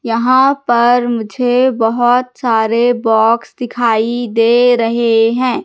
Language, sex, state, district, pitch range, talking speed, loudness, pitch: Hindi, female, Madhya Pradesh, Katni, 230-245 Hz, 105 wpm, -13 LUFS, 240 Hz